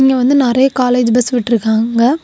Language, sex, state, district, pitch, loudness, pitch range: Tamil, female, Tamil Nadu, Kanyakumari, 250 Hz, -12 LUFS, 235-265 Hz